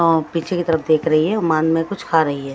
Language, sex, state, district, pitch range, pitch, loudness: Hindi, male, Bihar, West Champaran, 155-165 Hz, 160 Hz, -18 LUFS